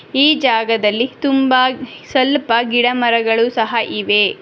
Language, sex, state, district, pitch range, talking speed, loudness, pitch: Kannada, female, Karnataka, Bangalore, 225-260 Hz, 110 wpm, -15 LUFS, 240 Hz